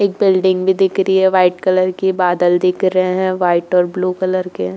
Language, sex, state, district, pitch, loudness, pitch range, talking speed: Hindi, female, Uttar Pradesh, Jalaun, 185 Hz, -15 LUFS, 180-190 Hz, 225 wpm